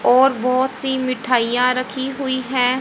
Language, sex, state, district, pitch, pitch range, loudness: Hindi, female, Haryana, Jhajjar, 255 Hz, 250-265 Hz, -18 LUFS